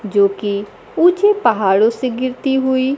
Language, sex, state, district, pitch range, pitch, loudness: Hindi, female, Bihar, Kaimur, 205-265 Hz, 250 Hz, -16 LUFS